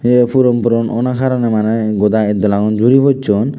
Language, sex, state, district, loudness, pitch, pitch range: Chakma, male, Tripura, West Tripura, -13 LUFS, 115 Hz, 105-125 Hz